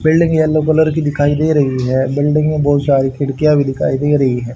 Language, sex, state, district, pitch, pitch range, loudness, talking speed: Hindi, male, Haryana, Rohtak, 145 Hz, 135-155 Hz, -14 LUFS, 235 wpm